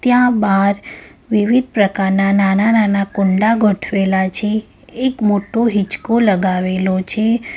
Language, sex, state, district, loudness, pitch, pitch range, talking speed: Gujarati, female, Gujarat, Valsad, -15 LUFS, 205 Hz, 195-225 Hz, 105 wpm